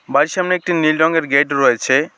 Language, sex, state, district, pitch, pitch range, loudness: Bengali, male, West Bengal, Alipurduar, 160 Hz, 140-175 Hz, -15 LUFS